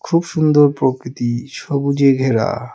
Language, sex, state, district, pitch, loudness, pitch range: Bengali, male, West Bengal, Alipurduar, 135 Hz, -16 LUFS, 120-145 Hz